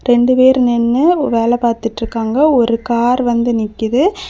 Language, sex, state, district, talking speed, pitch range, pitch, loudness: Tamil, female, Tamil Nadu, Kanyakumari, 125 wpm, 230-255 Hz, 240 Hz, -14 LUFS